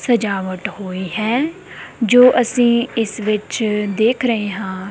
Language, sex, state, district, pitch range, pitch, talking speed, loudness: Punjabi, female, Punjab, Kapurthala, 200-240 Hz, 220 Hz, 120 wpm, -17 LUFS